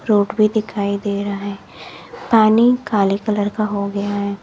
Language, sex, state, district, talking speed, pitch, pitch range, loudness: Hindi, female, Uttar Pradesh, Lalitpur, 175 wpm, 205 Hz, 200-215 Hz, -18 LUFS